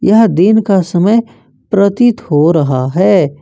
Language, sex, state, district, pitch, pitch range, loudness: Hindi, male, Jharkhand, Ranchi, 190 Hz, 145-210 Hz, -11 LUFS